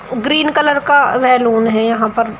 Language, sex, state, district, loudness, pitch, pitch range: Hindi, female, Uttar Pradesh, Shamli, -13 LUFS, 250 Hz, 225-285 Hz